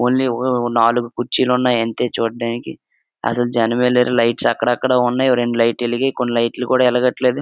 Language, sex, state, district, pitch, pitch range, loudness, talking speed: Telugu, male, Andhra Pradesh, Srikakulam, 120 Hz, 120-125 Hz, -17 LUFS, 160 wpm